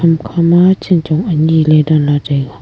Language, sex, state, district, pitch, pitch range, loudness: Wancho, female, Arunachal Pradesh, Longding, 160 Hz, 150-170 Hz, -12 LUFS